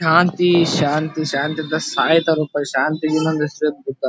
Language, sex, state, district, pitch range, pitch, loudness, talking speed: Kannada, male, Karnataka, Dharwad, 145-160 Hz, 155 Hz, -18 LUFS, 160 wpm